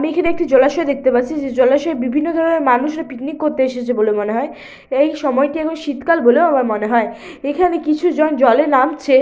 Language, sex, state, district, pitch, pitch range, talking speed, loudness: Bengali, female, West Bengal, Purulia, 285 Hz, 260-315 Hz, 195 wpm, -16 LUFS